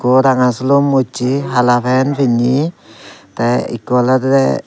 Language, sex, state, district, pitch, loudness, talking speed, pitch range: Chakma, male, Tripura, Dhalai, 130 Hz, -14 LUFS, 130 wpm, 125-135 Hz